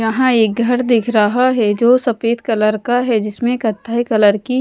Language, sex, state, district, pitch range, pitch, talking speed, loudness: Hindi, female, Odisha, Malkangiri, 215-245 Hz, 235 Hz, 195 wpm, -15 LUFS